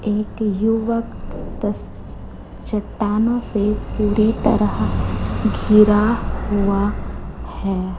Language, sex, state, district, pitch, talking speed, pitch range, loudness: Hindi, female, Chhattisgarh, Raipur, 210 Hz, 75 wpm, 195-215 Hz, -19 LUFS